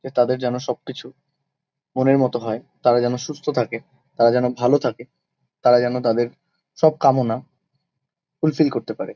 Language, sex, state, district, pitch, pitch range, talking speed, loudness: Bengali, male, West Bengal, Kolkata, 130 Hz, 125-145 Hz, 150 wpm, -20 LUFS